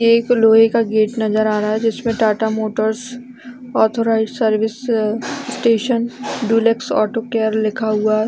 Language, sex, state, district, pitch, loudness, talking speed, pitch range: Hindi, female, Chhattisgarh, Bastar, 225 Hz, -17 LUFS, 145 wpm, 220-240 Hz